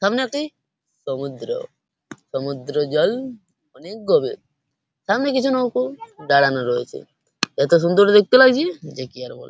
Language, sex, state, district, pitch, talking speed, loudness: Bengali, male, West Bengal, Paschim Medinipur, 210 Hz, 125 wpm, -19 LUFS